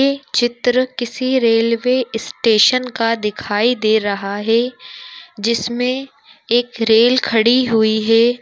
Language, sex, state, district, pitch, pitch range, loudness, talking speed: Hindi, female, Maharashtra, Chandrapur, 235 Hz, 220-250 Hz, -16 LUFS, 115 wpm